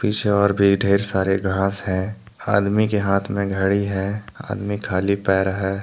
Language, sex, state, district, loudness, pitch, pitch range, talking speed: Hindi, male, Jharkhand, Deoghar, -21 LUFS, 100 Hz, 95-100 Hz, 175 wpm